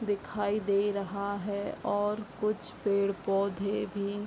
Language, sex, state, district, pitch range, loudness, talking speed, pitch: Hindi, female, Bihar, Bhagalpur, 200-205 Hz, -31 LUFS, 125 wpm, 200 Hz